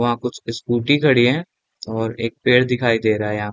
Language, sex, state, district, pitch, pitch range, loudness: Hindi, male, Chhattisgarh, Bilaspur, 120 Hz, 115-125 Hz, -19 LUFS